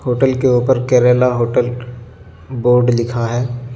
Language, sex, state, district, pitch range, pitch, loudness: Hindi, male, Jharkhand, Garhwa, 120-125 Hz, 125 Hz, -15 LUFS